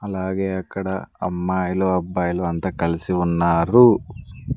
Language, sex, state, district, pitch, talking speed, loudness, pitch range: Telugu, male, Andhra Pradesh, Sri Satya Sai, 95 Hz, 90 wpm, -20 LUFS, 85-95 Hz